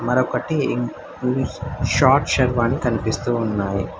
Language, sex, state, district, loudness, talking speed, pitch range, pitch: Telugu, male, Telangana, Hyderabad, -21 LUFS, 105 wpm, 120-130 Hz, 125 Hz